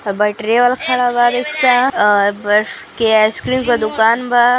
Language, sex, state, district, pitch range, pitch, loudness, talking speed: Hindi, female, Uttar Pradesh, Gorakhpur, 215-250 Hz, 240 Hz, -14 LUFS, 145 wpm